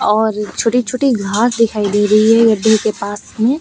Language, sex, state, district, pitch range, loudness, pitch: Hindi, female, Uttar Pradesh, Lucknow, 210-230 Hz, -14 LUFS, 220 Hz